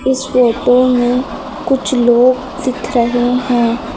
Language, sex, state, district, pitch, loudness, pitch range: Hindi, female, Uttar Pradesh, Lucknow, 250 Hz, -13 LUFS, 245-260 Hz